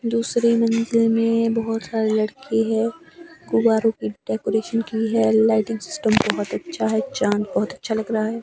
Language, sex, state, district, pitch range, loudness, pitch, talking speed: Hindi, female, Himachal Pradesh, Shimla, 220-230 Hz, -21 LUFS, 225 Hz, 155 wpm